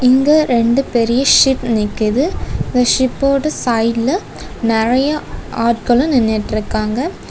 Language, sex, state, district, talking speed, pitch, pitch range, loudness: Tamil, female, Tamil Nadu, Kanyakumari, 90 wpm, 245 Hz, 230-270 Hz, -15 LUFS